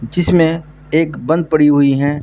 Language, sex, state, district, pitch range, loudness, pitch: Hindi, male, Bihar, Purnia, 145-165 Hz, -14 LUFS, 155 Hz